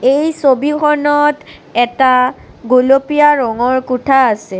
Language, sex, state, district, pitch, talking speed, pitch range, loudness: Assamese, female, Assam, Kamrup Metropolitan, 270 Hz, 90 wpm, 250-295 Hz, -12 LUFS